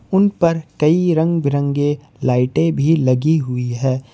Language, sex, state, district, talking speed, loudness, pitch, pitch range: Hindi, male, Jharkhand, Ranchi, 145 wpm, -17 LUFS, 145 Hz, 130-165 Hz